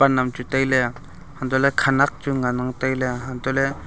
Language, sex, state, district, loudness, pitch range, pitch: Wancho, male, Arunachal Pradesh, Longding, -22 LUFS, 125-140 Hz, 130 Hz